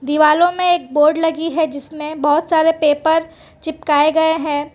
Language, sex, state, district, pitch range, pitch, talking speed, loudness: Hindi, female, Gujarat, Valsad, 295-325 Hz, 315 Hz, 165 wpm, -16 LUFS